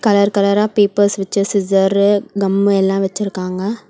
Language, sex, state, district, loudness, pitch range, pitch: Tamil, female, Tamil Nadu, Chennai, -15 LUFS, 195-205 Hz, 200 Hz